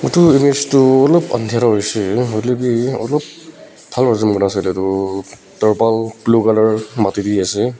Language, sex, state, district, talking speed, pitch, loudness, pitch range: Nagamese, female, Nagaland, Kohima, 145 wpm, 115 Hz, -15 LUFS, 105-130 Hz